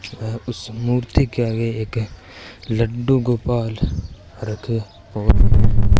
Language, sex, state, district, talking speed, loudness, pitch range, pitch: Hindi, male, Rajasthan, Bikaner, 110 wpm, -21 LUFS, 105-120 Hz, 110 Hz